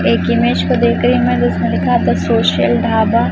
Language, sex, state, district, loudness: Hindi, female, Chhattisgarh, Raipur, -14 LUFS